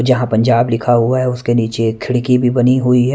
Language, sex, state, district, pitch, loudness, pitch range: Hindi, male, Punjab, Kapurthala, 125 Hz, -14 LUFS, 115-125 Hz